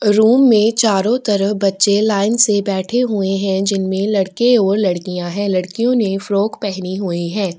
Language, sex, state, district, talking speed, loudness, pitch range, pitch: Hindi, female, Chhattisgarh, Kabirdham, 165 wpm, -16 LUFS, 195-215 Hz, 200 Hz